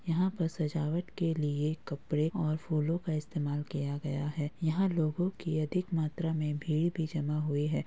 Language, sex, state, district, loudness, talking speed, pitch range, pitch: Hindi, female, Uttar Pradesh, Muzaffarnagar, -33 LUFS, 185 wpm, 150-165 Hz, 155 Hz